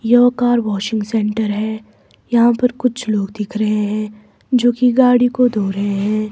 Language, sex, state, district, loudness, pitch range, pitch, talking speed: Hindi, female, Himachal Pradesh, Shimla, -16 LUFS, 210-245 Hz, 220 Hz, 180 wpm